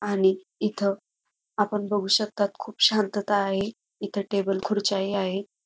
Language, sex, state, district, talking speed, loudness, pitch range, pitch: Marathi, female, Maharashtra, Dhule, 140 wpm, -25 LUFS, 195-205 Hz, 200 Hz